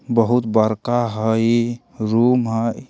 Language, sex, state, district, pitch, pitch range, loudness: Bajjika, male, Bihar, Vaishali, 115 Hz, 110-120 Hz, -19 LUFS